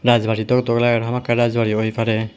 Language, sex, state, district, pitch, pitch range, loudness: Chakma, male, Tripura, West Tripura, 115 Hz, 110-120 Hz, -18 LUFS